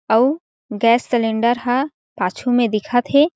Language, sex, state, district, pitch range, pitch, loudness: Chhattisgarhi, female, Chhattisgarh, Jashpur, 230-265 Hz, 245 Hz, -18 LUFS